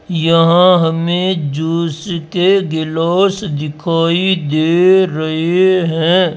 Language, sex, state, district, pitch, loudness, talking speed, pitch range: Hindi, male, Rajasthan, Jaipur, 170 Hz, -13 LUFS, 85 wpm, 160-185 Hz